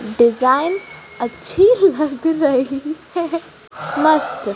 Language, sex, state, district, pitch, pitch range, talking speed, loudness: Hindi, female, Madhya Pradesh, Umaria, 305 Hz, 255-335 Hz, 80 wpm, -17 LUFS